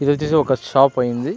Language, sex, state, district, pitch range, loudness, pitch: Telugu, male, Andhra Pradesh, Anantapur, 125-145 Hz, -17 LUFS, 135 Hz